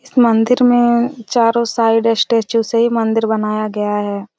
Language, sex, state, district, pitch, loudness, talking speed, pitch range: Hindi, female, Chhattisgarh, Raigarh, 230 Hz, -15 LUFS, 165 wpm, 220-235 Hz